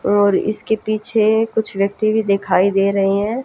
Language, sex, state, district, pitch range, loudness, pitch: Hindi, female, Haryana, Jhajjar, 200-220 Hz, -17 LUFS, 210 Hz